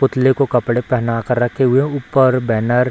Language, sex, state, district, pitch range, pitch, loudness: Hindi, female, Bihar, Samastipur, 120-135 Hz, 125 Hz, -16 LUFS